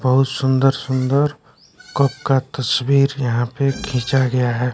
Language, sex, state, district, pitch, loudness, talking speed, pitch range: Hindi, male, Bihar, West Champaran, 130 Hz, -18 LUFS, 140 wpm, 125-135 Hz